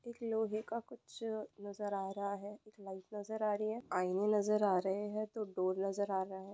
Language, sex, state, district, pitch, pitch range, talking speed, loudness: Hindi, female, West Bengal, Purulia, 205 Hz, 195-215 Hz, 230 wpm, -38 LUFS